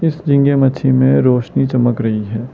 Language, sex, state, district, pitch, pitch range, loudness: Hindi, male, Arunachal Pradesh, Lower Dibang Valley, 125 Hz, 110-140 Hz, -14 LUFS